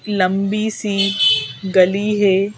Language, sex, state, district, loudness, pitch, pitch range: Hindi, female, Madhya Pradesh, Bhopal, -16 LUFS, 195 Hz, 190-205 Hz